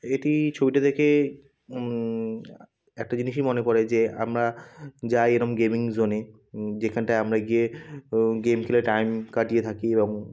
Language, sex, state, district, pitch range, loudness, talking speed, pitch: Bengali, male, West Bengal, Kolkata, 110-125 Hz, -25 LUFS, 150 wpm, 115 Hz